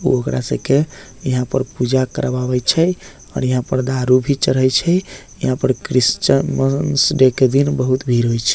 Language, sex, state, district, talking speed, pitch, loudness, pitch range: Bajjika, male, Bihar, Vaishali, 205 wpm, 130 Hz, -17 LUFS, 125-140 Hz